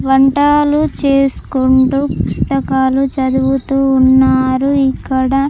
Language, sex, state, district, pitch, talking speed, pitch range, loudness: Telugu, female, Andhra Pradesh, Chittoor, 270 Hz, 65 wpm, 265-275 Hz, -13 LUFS